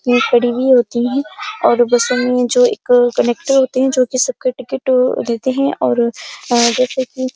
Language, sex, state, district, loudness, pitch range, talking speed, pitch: Hindi, female, Uttar Pradesh, Jyotiba Phule Nagar, -15 LUFS, 245-270 Hz, 180 wpm, 255 Hz